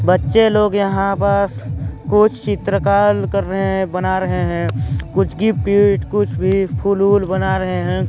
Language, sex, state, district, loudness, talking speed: Hindi, male, Chhattisgarh, Balrampur, -16 LUFS, 155 wpm